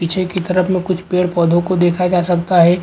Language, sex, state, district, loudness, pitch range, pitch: Hindi, male, Chhattisgarh, Bastar, -15 LUFS, 175-185 Hz, 180 Hz